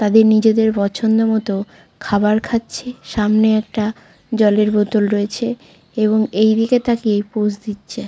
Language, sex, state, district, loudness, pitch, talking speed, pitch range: Bengali, female, West Bengal, Jalpaiguri, -17 LUFS, 215 Hz, 110 wpm, 210-225 Hz